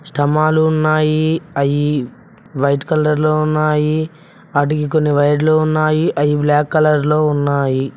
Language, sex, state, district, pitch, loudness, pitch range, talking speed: Telugu, male, Telangana, Mahabubabad, 150 Hz, -15 LUFS, 145-155 Hz, 115 wpm